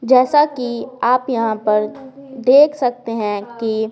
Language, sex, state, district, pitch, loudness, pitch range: Hindi, female, Bihar, Patna, 245 Hz, -17 LUFS, 220-265 Hz